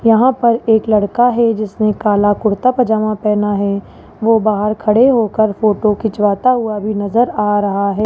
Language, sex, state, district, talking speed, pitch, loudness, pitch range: Hindi, male, Rajasthan, Jaipur, 170 wpm, 215 Hz, -14 LUFS, 205-230 Hz